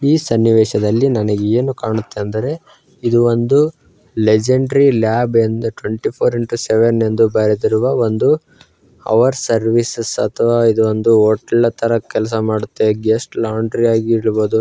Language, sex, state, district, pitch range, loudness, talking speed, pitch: Kannada, male, Karnataka, Bijapur, 110-120 Hz, -15 LUFS, 125 wpm, 115 Hz